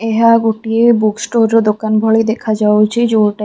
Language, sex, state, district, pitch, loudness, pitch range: Odia, female, Odisha, Khordha, 220 Hz, -12 LUFS, 215-225 Hz